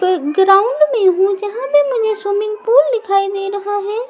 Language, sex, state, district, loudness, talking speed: Hindi, female, Maharashtra, Mumbai Suburban, -15 LUFS, 205 wpm